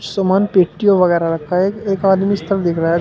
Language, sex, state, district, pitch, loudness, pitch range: Hindi, male, Uttar Pradesh, Shamli, 190 Hz, -15 LUFS, 170-195 Hz